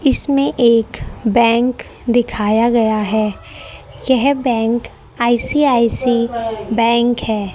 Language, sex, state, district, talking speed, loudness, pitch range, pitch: Hindi, female, Haryana, Rohtak, 95 wpm, -15 LUFS, 225-245 Hz, 235 Hz